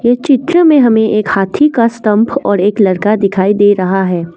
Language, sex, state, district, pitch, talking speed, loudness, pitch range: Hindi, female, Assam, Kamrup Metropolitan, 215 Hz, 205 wpm, -11 LUFS, 195-240 Hz